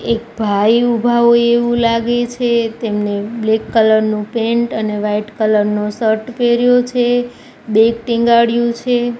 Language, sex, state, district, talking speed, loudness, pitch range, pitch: Gujarati, female, Gujarat, Gandhinagar, 145 wpm, -15 LUFS, 220-240 Hz, 230 Hz